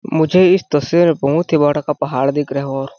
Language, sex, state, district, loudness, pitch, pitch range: Hindi, male, Chhattisgarh, Balrampur, -15 LUFS, 150 Hz, 140-165 Hz